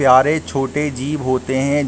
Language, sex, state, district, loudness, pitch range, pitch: Hindi, male, Bihar, Gaya, -18 LUFS, 130-145 Hz, 135 Hz